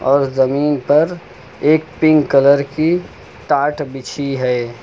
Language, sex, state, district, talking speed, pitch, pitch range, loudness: Hindi, male, Uttar Pradesh, Lucknow, 125 wpm, 140 Hz, 135-150 Hz, -16 LUFS